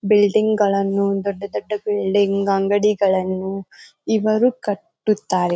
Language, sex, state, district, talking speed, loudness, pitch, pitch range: Kannada, female, Karnataka, Bijapur, 85 wpm, -19 LUFS, 200 Hz, 195-210 Hz